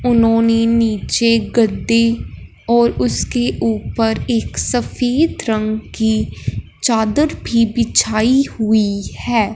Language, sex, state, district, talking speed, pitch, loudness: Hindi, male, Punjab, Fazilka, 95 wpm, 220 Hz, -16 LUFS